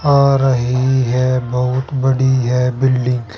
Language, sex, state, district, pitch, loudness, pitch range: Hindi, male, Haryana, Jhajjar, 130 Hz, -15 LUFS, 125-130 Hz